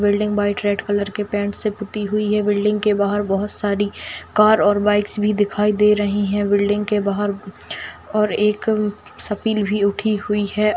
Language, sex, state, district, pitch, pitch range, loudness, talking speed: Hindi, female, Bihar, Madhepura, 205 Hz, 205-210 Hz, -19 LUFS, 185 wpm